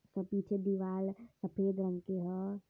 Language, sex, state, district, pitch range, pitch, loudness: Hindi, male, Uttar Pradesh, Varanasi, 190-200 Hz, 195 Hz, -37 LUFS